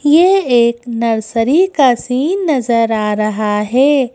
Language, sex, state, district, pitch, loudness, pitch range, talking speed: Hindi, female, Madhya Pradesh, Bhopal, 245 Hz, -13 LUFS, 230-290 Hz, 130 wpm